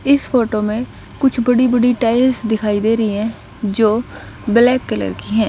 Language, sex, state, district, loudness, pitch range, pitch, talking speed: Hindi, female, Punjab, Kapurthala, -16 LUFS, 220-250 Hz, 230 Hz, 175 wpm